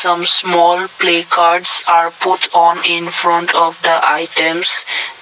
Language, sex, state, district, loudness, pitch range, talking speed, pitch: English, male, Assam, Kamrup Metropolitan, -12 LUFS, 170-180 Hz, 115 wpm, 170 Hz